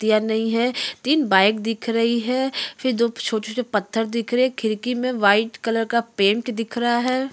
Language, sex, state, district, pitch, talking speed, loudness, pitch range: Hindi, female, Uttarakhand, Tehri Garhwal, 230 Hz, 195 wpm, -21 LUFS, 220-245 Hz